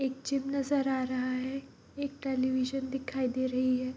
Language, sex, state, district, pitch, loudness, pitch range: Hindi, female, Bihar, Kishanganj, 260 Hz, -32 LUFS, 255-275 Hz